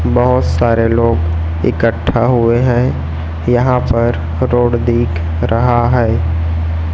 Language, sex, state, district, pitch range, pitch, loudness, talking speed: Hindi, male, Chhattisgarh, Raipur, 80-120 Hz, 115 Hz, -14 LUFS, 105 wpm